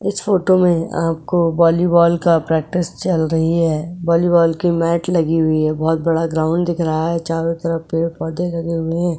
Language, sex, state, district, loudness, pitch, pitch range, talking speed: Hindi, female, Maharashtra, Chandrapur, -17 LUFS, 165 Hz, 165-175 Hz, 190 wpm